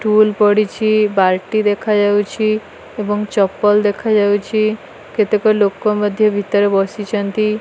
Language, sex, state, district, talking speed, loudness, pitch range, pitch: Odia, female, Odisha, Malkangiri, 95 wpm, -15 LUFS, 205-215 Hz, 210 Hz